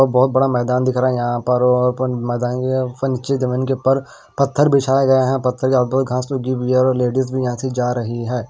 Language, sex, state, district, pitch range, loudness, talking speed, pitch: Hindi, male, Maharashtra, Washim, 125-130 Hz, -18 LUFS, 235 wpm, 130 Hz